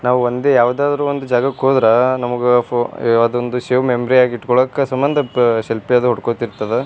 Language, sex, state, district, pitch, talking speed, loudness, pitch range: Kannada, male, Karnataka, Bijapur, 125 Hz, 140 wpm, -16 LUFS, 120-130 Hz